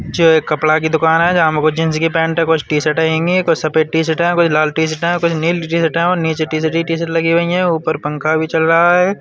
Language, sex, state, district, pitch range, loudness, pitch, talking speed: Bundeli, male, Uttar Pradesh, Budaun, 160-170 Hz, -14 LUFS, 160 Hz, 260 wpm